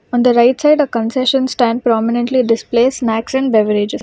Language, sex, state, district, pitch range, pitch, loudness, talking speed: English, female, Karnataka, Bangalore, 230-260 Hz, 240 Hz, -14 LUFS, 180 wpm